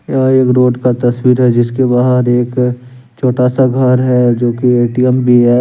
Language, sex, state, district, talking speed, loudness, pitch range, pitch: Hindi, male, Jharkhand, Deoghar, 205 wpm, -11 LUFS, 120-125 Hz, 125 Hz